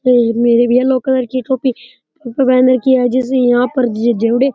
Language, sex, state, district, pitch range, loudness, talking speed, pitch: Rajasthani, male, Rajasthan, Churu, 240-260 Hz, -13 LUFS, 225 wpm, 255 Hz